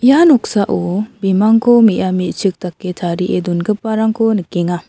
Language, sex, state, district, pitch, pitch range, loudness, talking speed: Garo, female, Meghalaya, South Garo Hills, 200 Hz, 180-220 Hz, -14 LUFS, 100 wpm